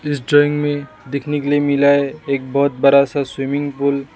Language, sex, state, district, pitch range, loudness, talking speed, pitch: Hindi, male, Assam, Sonitpur, 140-145 Hz, -17 LUFS, 200 wpm, 140 Hz